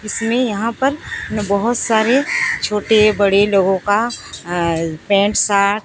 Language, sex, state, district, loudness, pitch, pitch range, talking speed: Hindi, female, Odisha, Sambalpur, -16 LUFS, 210 Hz, 200-230 Hz, 135 wpm